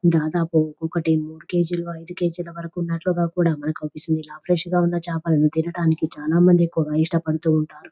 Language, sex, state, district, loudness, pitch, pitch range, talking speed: Telugu, female, Telangana, Nalgonda, -22 LUFS, 165 Hz, 155-175 Hz, 175 wpm